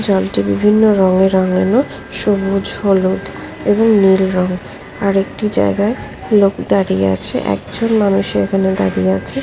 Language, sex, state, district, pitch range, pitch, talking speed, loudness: Bengali, female, West Bengal, Paschim Medinipur, 180-205 Hz, 195 Hz, 125 wpm, -14 LUFS